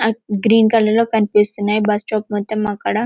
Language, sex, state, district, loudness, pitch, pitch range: Telugu, female, Telangana, Karimnagar, -16 LUFS, 215 Hz, 210-220 Hz